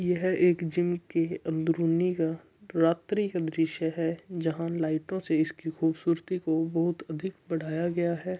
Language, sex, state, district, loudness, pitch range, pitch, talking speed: Marwari, male, Rajasthan, Churu, -29 LUFS, 160-180 Hz, 165 Hz, 155 wpm